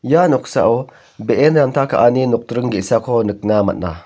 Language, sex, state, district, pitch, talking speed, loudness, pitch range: Garo, male, Meghalaya, North Garo Hills, 115 Hz, 135 wpm, -15 LUFS, 105-130 Hz